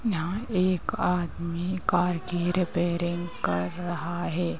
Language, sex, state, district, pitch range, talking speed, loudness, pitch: Hindi, female, Uttar Pradesh, Ghazipur, 170-180 Hz, 115 wpm, -28 LUFS, 175 Hz